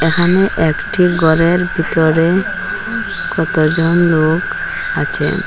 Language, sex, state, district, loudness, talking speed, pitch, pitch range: Bengali, female, Assam, Hailakandi, -14 LUFS, 75 wpm, 165 Hz, 160-175 Hz